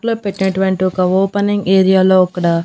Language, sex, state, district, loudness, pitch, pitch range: Telugu, female, Andhra Pradesh, Annamaya, -14 LUFS, 190 Hz, 185-200 Hz